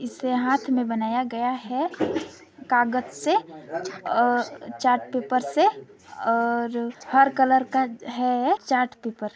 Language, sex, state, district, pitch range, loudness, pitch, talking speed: Hindi, female, Chhattisgarh, Sarguja, 240-270 Hz, -24 LUFS, 255 Hz, 135 wpm